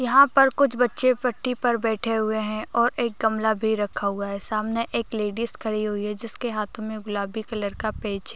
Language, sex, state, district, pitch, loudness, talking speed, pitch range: Hindi, female, Uttar Pradesh, Ghazipur, 220 Hz, -24 LUFS, 210 wpm, 215-235 Hz